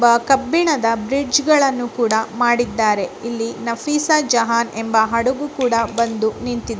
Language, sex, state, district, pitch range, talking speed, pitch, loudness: Kannada, female, Karnataka, Bellary, 230-270 Hz, 115 wpm, 235 Hz, -18 LUFS